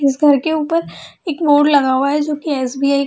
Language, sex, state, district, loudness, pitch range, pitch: Hindi, female, Bihar, Muzaffarpur, -15 LUFS, 275-300 Hz, 290 Hz